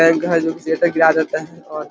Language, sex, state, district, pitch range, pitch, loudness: Hindi, male, Chhattisgarh, Korba, 160-165 Hz, 160 Hz, -17 LUFS